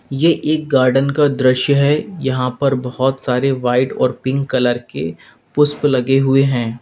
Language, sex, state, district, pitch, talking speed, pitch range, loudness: Hindi, male, Uttar Pradesh, Lalitpur, 135 Hz, 165 wpm, 125-140 Hz, -16 LUFS